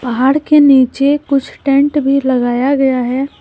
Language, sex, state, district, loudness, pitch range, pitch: Hindi, female, Jharkhand, Deoghar, -12 LUFS, 260-280 Hz, 275 Hz